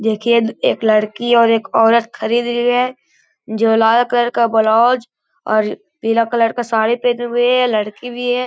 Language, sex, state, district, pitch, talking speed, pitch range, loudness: Hindi, male, Bihar, Gaya, 235 Hz, 165 wpm, 225-245 Hz, -15 LUFS